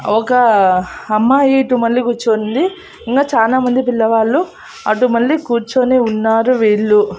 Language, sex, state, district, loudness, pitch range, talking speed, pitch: Telugu, female, Andhra Pradesh, Annamaya, -14 LUFS, 220-260 Hz, 125 wpm, 235 Hz